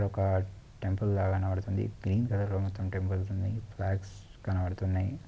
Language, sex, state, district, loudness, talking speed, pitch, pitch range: Telugu, male, Andhra Pradesh, Chittoor, -32 LUFS, 150 wpm, 95 Hz, 95-100 Hz